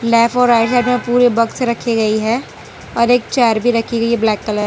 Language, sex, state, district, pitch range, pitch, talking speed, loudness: Hindi, female, Gujarat, Valsad, 230-245 Hz, 235 Hz, 245 wpm, -15 LUFS